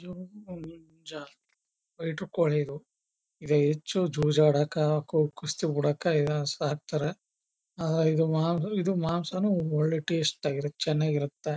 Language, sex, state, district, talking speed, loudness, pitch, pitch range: Kannada, male, Karnataka, Chamarajanagar, 90 wpm, -28 LUFS, 155 Hz, 150-170 Hz